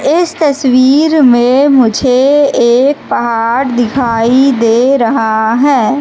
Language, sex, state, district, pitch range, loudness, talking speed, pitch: Hindi, female, Madhya Pradesh, Katni, 235-280 Hz, -9 LUFS, 100 wpm, 260 Hz